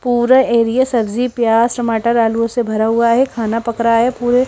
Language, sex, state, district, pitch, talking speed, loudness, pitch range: Hindi, female, Himachal Pradesh, Shimla, 235 Hz, 200 wpm, -15 LUFS, 230-245 Hz